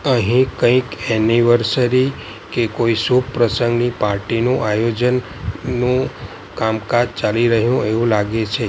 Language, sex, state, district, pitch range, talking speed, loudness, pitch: Gujarati, male, Gujarat, Valsad, 110-125 Hz, 110 wpm, -17 LUFS, 120 Hz